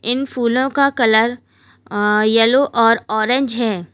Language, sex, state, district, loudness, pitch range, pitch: Hindi, female, Uttar Pradesh, Lalitpur, -15 LUFS, 215-255 Hz, 230 Hz